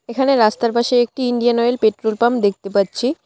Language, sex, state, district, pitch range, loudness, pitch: Bengali, female, West Bengal, Cooch Behar, 220-245 Hz, -17 LUFS, 235 Hz